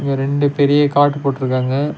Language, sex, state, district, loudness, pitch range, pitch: Tamil, male, Tamil Nadu, Nilgiris, -16 LUFS, 135-145 Hz, 140 Hz